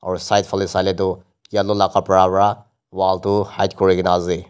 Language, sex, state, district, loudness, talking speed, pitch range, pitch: Nagamese, male, Nagaland, Dimapur, -18 LUFS, 200 wpm, 90-100 Hz, 95 Hz